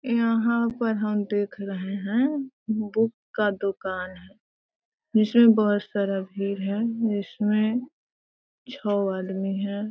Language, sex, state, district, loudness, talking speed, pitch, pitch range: Hindi, female, Bihar, Sitamarhi, -25 LUFS, 110 wpm, 210 Hz, 200-230 Hz